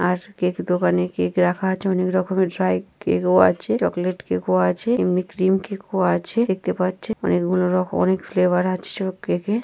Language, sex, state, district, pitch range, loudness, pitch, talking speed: Bengali, female, West Bengal, North 24 Parganas, 175-190 Hz, -21 LUFS, 185 Hz, 185 wpm